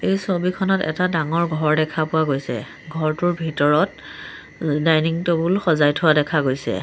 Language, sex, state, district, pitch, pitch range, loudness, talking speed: Assamese, male, Assam, Sonitpur, 155 Hz, 150-170 Hz, -20 LUFS, 140 wpm